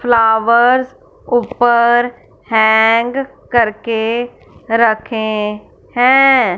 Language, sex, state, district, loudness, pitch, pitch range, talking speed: Hindi, female, Punjab, Fazilka, -13 LUFS, 235 Hz, 220-245 Hz, 55 wpm